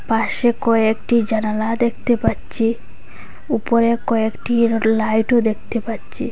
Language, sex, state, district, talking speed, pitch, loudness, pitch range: Bengali, female, Assam, Hailakandi, 105 wpm, 230 Hz, -18 LUFS, 220-235 Hz